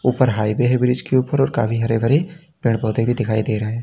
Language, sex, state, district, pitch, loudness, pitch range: Hindi, male, Uttar Pradesh, Lalitpur, 120 Hz, -19 LUFS, 115-130 Hz